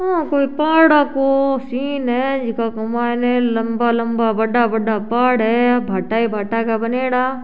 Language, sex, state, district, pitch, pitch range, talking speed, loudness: Rajasthani, female, Rajasthan, Churu, 245 Hz, 230-270 Hz, 160 wpm, -17 LUFS